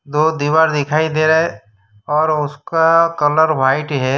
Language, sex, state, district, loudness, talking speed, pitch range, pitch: Hindi, male, Gujarat, Valsad, -15 LUFS, 160 wpm, 140-160 Hz, 150 Hz